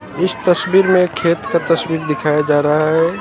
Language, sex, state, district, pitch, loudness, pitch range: Hindi, male, Haryana, Jhajjar, 165 Hz, -15 LUFS, 150-180 Hz